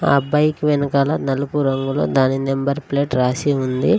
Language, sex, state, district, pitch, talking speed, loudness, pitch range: Telugu, female, Telangana, Mahabubabad, 140 Hz, 150 wpm, -19 LUFS, 135-145 Hz